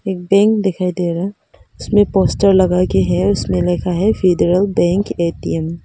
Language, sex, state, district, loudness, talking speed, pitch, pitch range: Hindi, female, Arunachal Pradesh, Papum Pare, -15 LUFS, 185 wpm, 185 Hz, 175-200 Hz